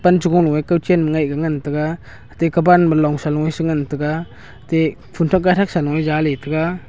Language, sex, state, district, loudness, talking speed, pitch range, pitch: Wancho, male, Arunachal Pradesh, Longding, -17 LUFS, 185 wpm, 150-170 Hz, 160 Hz